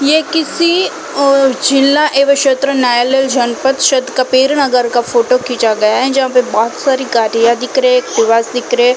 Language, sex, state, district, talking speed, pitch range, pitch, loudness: Hindi, female, Chhattisgarh, Balrampur, 180 wpm, 240-275 Hz, 260 Hz, -12 LUFS